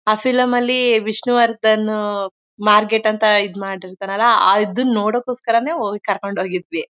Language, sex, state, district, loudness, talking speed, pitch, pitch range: Kannada, female, Karnataka, Mysore, -17 LUFS, 115 wpm, 215 Hz, 200-235 Hz